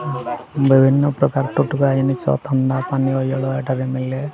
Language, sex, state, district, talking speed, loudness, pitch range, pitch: Odia, male, Odisha, Sambalpur, 125 wpm, -18 LUFS, 130-135 Hz, 135 Hz